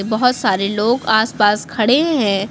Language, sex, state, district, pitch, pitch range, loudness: Hindi, female, Uttar Pradesh, Lucknow, 220 Hz, 205-250 Hz, -16 LUFS